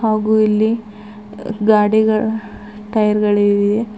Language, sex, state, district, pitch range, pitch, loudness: Kannada, female, Karnataka, Bidar, 210-220 Hz, 215 Hz, -16 LUFS